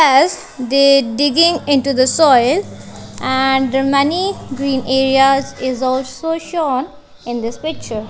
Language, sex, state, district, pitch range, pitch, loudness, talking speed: English, female, Punjab, Kapurthala, 260-285 Hz, 270 Hz, -15 LUFS, 125 wpm